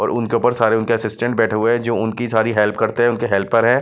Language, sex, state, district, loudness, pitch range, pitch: Hindi, male, Chandigarh, Chandigarh, -17 LUFS, 110-120 Hz, 115 Hz